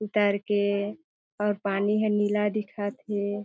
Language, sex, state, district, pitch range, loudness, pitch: Chhattisgarhi, female, Chhattisgarh, Jashpur, 200-210 Hz, -27 LUFS, 205 Hz